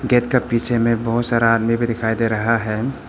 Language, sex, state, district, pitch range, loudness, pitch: Hindi, male, Arunachal Pradesh, Papum Pare, 115-120 Hz, -18 LUFS, 115 Hz